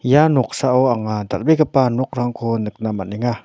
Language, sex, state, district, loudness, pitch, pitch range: Garo, male, Meghalaya, North Garo Hills, -18 LUFS, 120 Hz, 110-130 Hz